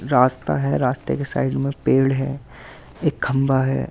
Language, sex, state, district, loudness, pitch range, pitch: Hindi, male, Delhi, New Delhi, -21 LUFS, 125-135 Hz, 135 Hz